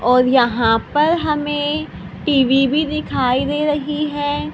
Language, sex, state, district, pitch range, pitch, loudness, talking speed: Hindi, female, Maharashtra, Gondia, 255-300 Hz, 290 Hz, -17 LUFS, 130 wpm